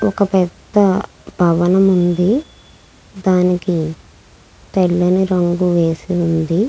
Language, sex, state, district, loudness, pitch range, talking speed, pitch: Telugu, female, Andhra Pradesh, Krishna, -16 LUFS, 170-190 Hz, 80 wpm, 180 Hz